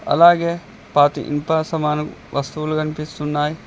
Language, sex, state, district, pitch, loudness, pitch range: Telugu, male, Telangana, Mahabubabad, 150 Hz, -19 LUFS, 150-160 Hz